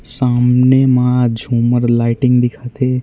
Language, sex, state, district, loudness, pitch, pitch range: Chhattisgarhi, male, Chhattisgarh, Raigarh, -13 LUFS, 125 Hz, 120-125 Hz